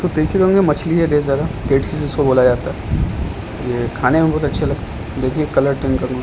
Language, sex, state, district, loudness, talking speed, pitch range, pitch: Hindi, male, Uttar Pradesh, Ghazipur, -17 LUFS, 220 wpm, 125-155 Hz, 135 Hz